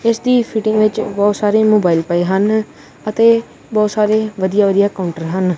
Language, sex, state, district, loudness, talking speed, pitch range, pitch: Punjabi, male, Punjab, Kapurthala, -15 LUFS, 160 wpm, 190-220 Hz, 210 Hz